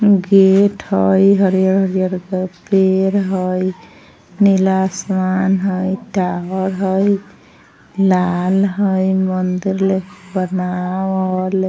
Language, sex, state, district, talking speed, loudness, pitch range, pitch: Maithili, female, Bihar, Vaishali, 80 wpm, -16 LUFS, 185-195 Hz, 190 Hz